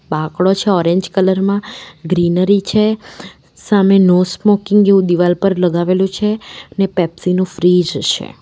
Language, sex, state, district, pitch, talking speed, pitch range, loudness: Gujarati, female, Gujarat, Valsad, 185 Hz, 145 wpm, 175-200 Hz, -14 LUFS